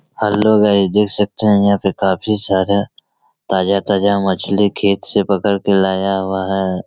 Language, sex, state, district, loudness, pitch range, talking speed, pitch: Hindi, male, Chhattisgarh, Raigarh, -15 LUFS, 95-105 Hz, 155 wpm, 100 Hz